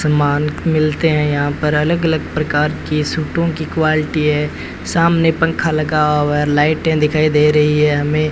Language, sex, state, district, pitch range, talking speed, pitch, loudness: Hindi, male, Rajasthan, Bikaner, 150-155 Hz, 185 wpm, 150 Hz, -15 LUFS